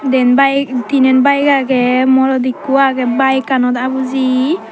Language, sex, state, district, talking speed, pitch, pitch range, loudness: Chakma, female, Tripura, Dhalai, 125 wpm, 265 Hz, 255-275 Hz, -13 LUFS